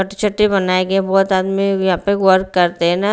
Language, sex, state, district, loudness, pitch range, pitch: Hindi, female, Bihar, Patna, -15 LUFS, 185-195 Hz, 190 Hz